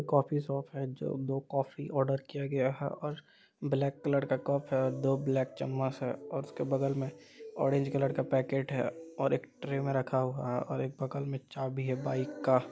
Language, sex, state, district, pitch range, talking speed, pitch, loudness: Hindi, male, Bihar, Supaul, 130-140 Hz, 210 wpm, 135 Hz, -33 LUFS